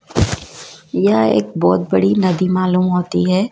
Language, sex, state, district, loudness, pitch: Hindi, female, Madhya Pradesh, Dhar, -16 LUFS, 180 Hz